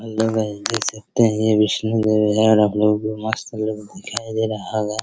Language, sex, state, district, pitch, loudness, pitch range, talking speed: Hindi, male, Bihar, Araria, 110 Hz, -20 LUFS, 105-110 Hz, 215 wpm